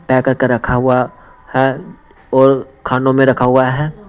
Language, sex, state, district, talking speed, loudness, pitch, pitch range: Hindi, male, Punjab, Pathankot, 145 wpm, -14 LUFS, 130 Hz, 125-135 Hz